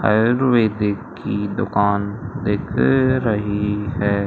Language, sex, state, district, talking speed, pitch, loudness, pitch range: Hindi, male, Madhya Pradesh, Umaria, 85 wpm, 105 Hz, -19 LUFS, 100-115 Hz